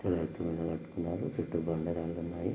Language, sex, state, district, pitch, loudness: Telugu, male, Telangana, Nalgonda, 85 Hz, -35 LUFS